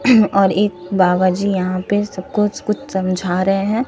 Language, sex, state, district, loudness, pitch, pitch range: Hindi, female, Bihar, Katihar, -17 LUFS, 195 Hz, 185-210 Hz